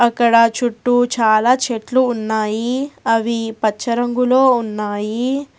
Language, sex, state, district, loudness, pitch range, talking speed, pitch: Telugu, female, Telangana, Hyderabad, -17 LUFS, 220-250 Hz, 95 wpm, 235 Hz